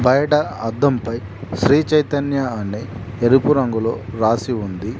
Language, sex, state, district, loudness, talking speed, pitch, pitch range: Telugu, male, Telangana, Mahabubabad, -19 LUFS, 120 wpm, 120 Hz, 110-135 Hz